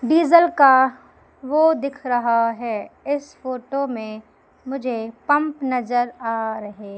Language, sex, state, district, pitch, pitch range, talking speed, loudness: Hindi, female, Madhya Pradesh, Umaria, 255 Hz, 230-285 Hz, 120 wpm, -20 LUFS